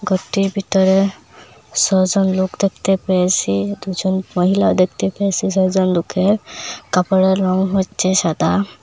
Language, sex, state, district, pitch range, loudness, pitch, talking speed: Bengali, female, Assam, Hailakandi, 185-195 Hz, -17 LUFS, 190 Hz, 110 wpm